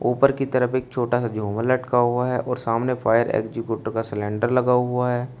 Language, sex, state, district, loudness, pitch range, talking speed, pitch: Hindi, male, Uttar Pradesh, Shamli, -22 LUFS, 115-125 Hz, 210 wpm, 120 Hz